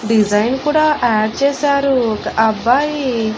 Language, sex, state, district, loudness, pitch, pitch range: Telugu, female, Andhra Pradesh, Annamaya, -15 LUFS, 245 Hz, 220-280 Hz